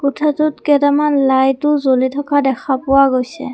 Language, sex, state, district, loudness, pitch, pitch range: Assamese, female, Assam, Kamrup Metropolitan, -15 LUFS, 280 Hz, 265-290 Hz